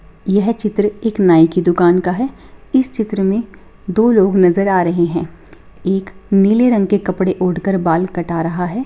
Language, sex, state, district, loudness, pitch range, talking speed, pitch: Hindi, female, Bihar, Samastipur, -15 LUFS, 180-210 Hz, 190 wpm, 190 Hz